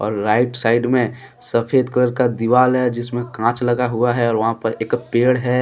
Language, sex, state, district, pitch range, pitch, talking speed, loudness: Hindi, male, Jharkhand, Deoghar, 115-125 Hz, 120 Hz, 225 wpm, -18 LUFS